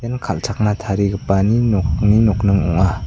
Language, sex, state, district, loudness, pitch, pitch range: Garo, male, Meghalaya, South Garo Hills, -17 LUFS, 100 Hz, 95-110 Hz